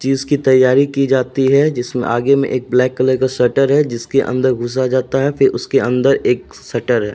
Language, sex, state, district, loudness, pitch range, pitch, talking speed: Hindi, male, Uttar Pradesh, Jalaun, -15 LUFS, 125-135 Hz, 130 Hz, 210 wpm